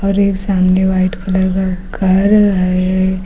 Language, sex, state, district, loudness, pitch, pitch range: Hindi, female, Uttar Pradesh, Lucknow, -13 LUFS, 190 Hz, 185-195 Hz